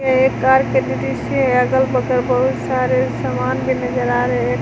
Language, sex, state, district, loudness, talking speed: Hindi, female, Jharkhand, Garhwa, -17 LUFS, 210 wpm